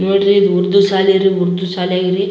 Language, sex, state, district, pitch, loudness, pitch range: Kannada, male, Karnataka, Raichur, 190 Hz, -13 LUFS, 185-195 Hz